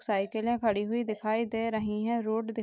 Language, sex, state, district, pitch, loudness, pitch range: Hindi, female, Bihar, Darbhanga, 220 Hz, -30 LUFS, 215-230 Hz